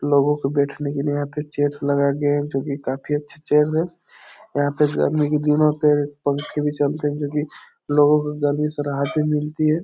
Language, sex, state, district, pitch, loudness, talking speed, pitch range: Hindi, male, Bihar, Supaul, 145 Hz, -21 LUFS, 225 wpm, 145-150 Hz